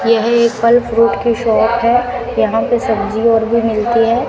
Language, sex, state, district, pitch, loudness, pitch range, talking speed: Hindi, female, Rajasthan, Bikaner, 230 Hz, -13 LUFS, 225-235 Hz, 195 wpm